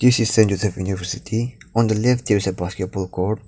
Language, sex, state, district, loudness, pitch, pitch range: English, male, Nagaland, Dimapur, -21 LUFS, 105 Hz, 95-115 Hz